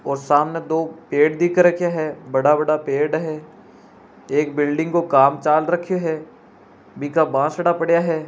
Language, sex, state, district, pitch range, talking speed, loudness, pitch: Hindi, female, Rajasthan, Nagaur, 150-170 Hz, 160 wpm, -19 LUFS, 155 Hz